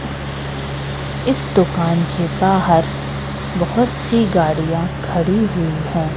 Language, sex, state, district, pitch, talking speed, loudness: Hindi, female, Madhya Pradesh, Katni, 160 Hz, 95 wpm, -18 LUFS